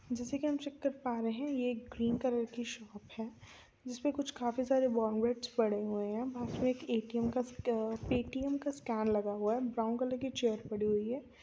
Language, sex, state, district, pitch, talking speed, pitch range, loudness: Hindi, female, Andhra Pradesh, Chittoor, 240 Hz, 215 wpm, 225-255 Hz, -35 LUFS